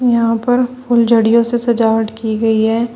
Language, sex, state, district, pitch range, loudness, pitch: Hindi, female, Uttar Pradesh, Shamli, 225-240 Hz, -14 LUFS, 235 Hz